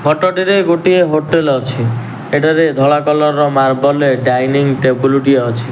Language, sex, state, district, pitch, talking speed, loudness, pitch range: Odia, male, Odisha, Nuapada, 140 Hz, 155 wpm, -13 LUFS, 130-155 Hz